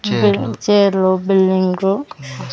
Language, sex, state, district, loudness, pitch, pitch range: Telugu, female, Andhra Pradesh, Sri Satya Sai, -15 LUFS, 190 Hz, 185-200 Hz